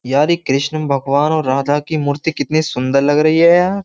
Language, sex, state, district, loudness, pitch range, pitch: Hindi, male, Uttar Pradesh, Jyotiba Phule Nagar, -15 LUFS, 140-155 Hz, 145 Hz